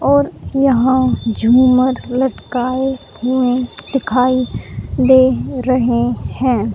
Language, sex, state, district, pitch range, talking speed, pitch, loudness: Hindi, female, Haryana, Rohtak, 245-260 Hz, 80 wpm, 255 Hz, -15 LUFS